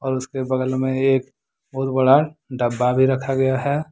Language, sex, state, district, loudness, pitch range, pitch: Hindi, male, Jharkhand, Deoghar, -20 LUFS, 130-135 Hz, 130 Hz